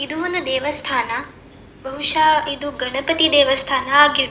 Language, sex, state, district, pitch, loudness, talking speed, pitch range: Kannada, female, Karnataka, Dakshina Kannada, 290 Hz, -17 LUFS, 125 wpm, 270-305 Hz